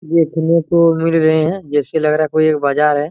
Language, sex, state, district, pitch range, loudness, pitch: Hindi, male, Chhattisgarh, Raigarh, 150-165 Hz, -15 LUFS, 155 Hz